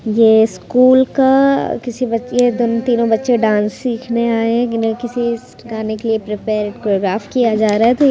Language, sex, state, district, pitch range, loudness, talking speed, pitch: Hindi, female, Bihar, Muzaffarpur, 220-245 Hz, -15 LUFS, 175 wpm, 230 Hz